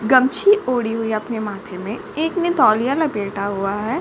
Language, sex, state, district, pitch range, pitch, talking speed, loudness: Hindi, female, Uttar Pradesh, Ghazipur, 205-300 Hz, 225 Hz, 195 wpm, -19 LUFS